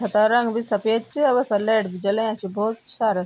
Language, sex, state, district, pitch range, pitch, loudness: Garhwali, female, Uttarakhand, Tehri Garhwal, 205-230 Hz, 220 Hz, -22 LUFS